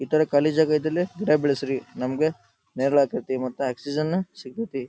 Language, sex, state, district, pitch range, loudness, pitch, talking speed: Kannada, male, Karnataka, Dharwad, 130-155 Hz, -24 LUFS, 145 Hz, 160 wpm